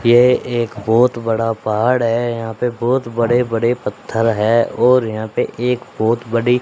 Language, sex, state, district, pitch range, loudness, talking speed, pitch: Hindi, male, Haryana, Rohtak, 115-125 Hz, -17 LUFS, 170 wpm, 115 Hz